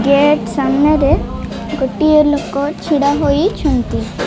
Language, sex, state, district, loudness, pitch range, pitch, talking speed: Odia, female, Odisha, Malkangiri, -14 LUFS, 275-300 Hz, 285 Hz, 85 wpm